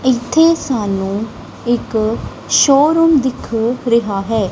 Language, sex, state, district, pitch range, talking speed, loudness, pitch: Punjabi, female, Punjab, Kapurthala, 220-275 Hz, 95 wpm, -15 LUFS, 240 Hz